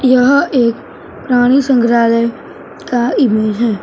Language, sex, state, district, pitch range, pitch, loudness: Hindi, male, Maharashtra, Mumbai Suburban, 230-255 Hz, 245 Hz, -12 LUFS